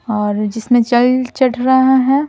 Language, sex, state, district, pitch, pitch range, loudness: Hindi, female, Bihar, Patna, 245 Hz, 225-260 Hz, -14 LUFS